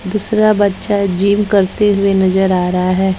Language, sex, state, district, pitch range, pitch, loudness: Hindi, female, Bihar, West Champaran, 190-205 Hz, 200 Hz, -13 LUFS